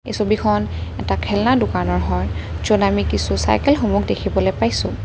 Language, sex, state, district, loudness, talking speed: Assamese, female, Assam, Kamrup Metropolitan, -19 LUFS, 140 wpm